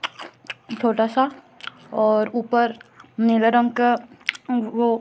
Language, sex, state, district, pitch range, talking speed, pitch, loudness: Hindi, female, Chhattisgarh, Raipur, 225-240 Hz, 95 wpm, 235 Hz, -21 LUFS